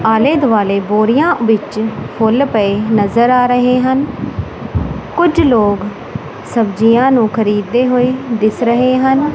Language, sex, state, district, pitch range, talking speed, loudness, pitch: Punjabi, female, Punjab, Kapurthala, 215-255 Hz, 120 wpm, -13 LUFS, 235 Hz